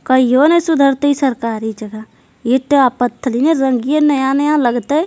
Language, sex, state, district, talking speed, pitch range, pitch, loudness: Hindi, female, Bihar, Jamui, 155 wpm, 245-290 Hz, 265 Hz, -14 LUFS